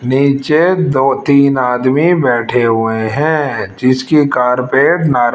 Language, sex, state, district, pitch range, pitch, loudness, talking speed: Hindi, female, Rajasthan, Jaipur, 125-150 Hz, 135 Hz, -12 LUFS, 110 wpm